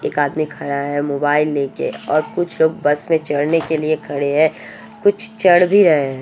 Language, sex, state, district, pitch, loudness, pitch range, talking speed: Hindi, female, Odisha, Sambalpur, 155 Hz, -17 LUFS, 145-165 Hz, 195 wpm